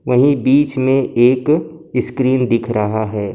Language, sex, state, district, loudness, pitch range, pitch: Hindi, male, Maharashtra, Gondia, -15 LUFS, 115-140 Hz, 130 Hz